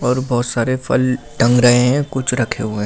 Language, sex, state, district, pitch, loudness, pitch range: Hindi, male, Delhi, New Delhi, 125 Hz, -16 LUFS, 120-130 Hz